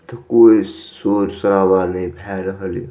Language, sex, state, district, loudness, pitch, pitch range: Maithili, male, Bihar, Madhepura, -16 LUFS, 100 Hz, 95-120 Hz